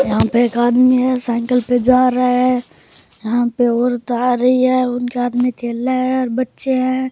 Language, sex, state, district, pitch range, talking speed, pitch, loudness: Rajasthani, male, Rajasthan, Churu, 240-255 Hz, 200 wpm, 250 Hz, -16 LUFS